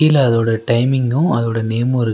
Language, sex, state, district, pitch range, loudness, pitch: Tamil, male, Tamil Nadu, Nilgiris, 115-130 Hz, -16 LUFS, 120 Hz